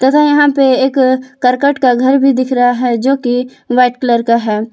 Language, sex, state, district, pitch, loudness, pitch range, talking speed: Hindi, female, Jharkhand, Palamu, 255 Hz, -12 LUFS, 245-270 Hz, 215 wpm